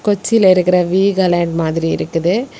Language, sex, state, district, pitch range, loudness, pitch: Tamil, female, Tamil Nadu, Kanyakumari, 170-200 Hz, -14 LUFS, 180 Hz